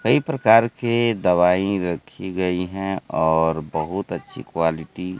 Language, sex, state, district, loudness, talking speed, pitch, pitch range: Hindi, male, Bihar, Kaimur, -21 LUFS, 140 wpm, 90 Hz, 80-100 Hz